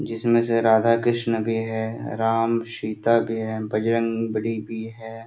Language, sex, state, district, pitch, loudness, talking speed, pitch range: Hindi, male, Jharkhand, Sahebganj, 115 Hz, -23 LUFS, 170 wpm, 110-115 Hz